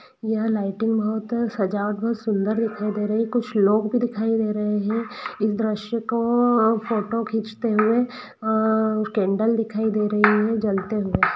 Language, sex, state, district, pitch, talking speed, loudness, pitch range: Hindi, female, Bihar, East Champaran, 220 Hz, 160 wpm, -22 LUFS, 210-225 Hz